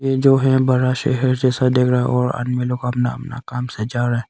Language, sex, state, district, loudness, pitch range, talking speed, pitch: Hindi, male, Arunachal Pradesh, Longding, -18 LUFS, 125-130 Hz, 250 wpm, 125 Hz